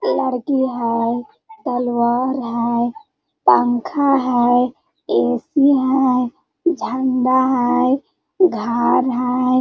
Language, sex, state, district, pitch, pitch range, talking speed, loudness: Hindi, female, Jharkhand, Sahebganj, 255 Hz, 245-270 Hz, 75 wpm, -18 LUFS